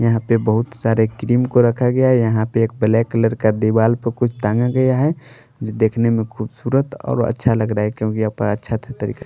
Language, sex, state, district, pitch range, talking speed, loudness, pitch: Hindi, male, Maharashtra, Washim, 110-125 Hz, 220 wpm, -18 LUFS, 115 Hz